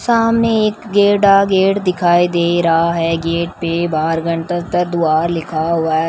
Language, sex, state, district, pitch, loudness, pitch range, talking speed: Hindi, female, Rajasthan, Bikaner, 170 Hz, -15 LUFS, 165-195 Hz, 150 wpm